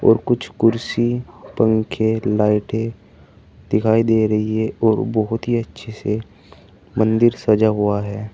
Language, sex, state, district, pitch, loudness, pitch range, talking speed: Hindi, male, Uttar Pradesh, Saharanpur, 110 Hz, -19 LUFS, 105-115 Hz, 130 wpm